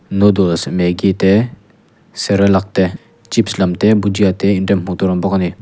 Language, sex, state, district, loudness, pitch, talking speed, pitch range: Mizo, male, Mizoram, Aizawl, -14 LUFS, 95 Hz, 190 wpm, 95-100 Hz